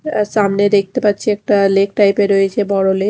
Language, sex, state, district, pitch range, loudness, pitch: Bengali, female, Odisha, Khordha, 195-210 Hz, -14 LUFS, 205 Hz